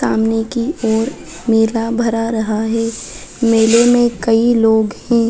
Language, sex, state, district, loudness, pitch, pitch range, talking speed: Hindi, female, Bihar, Araria, -15 LUFS, 225 Hz, 225-235 Hz, 145 wpm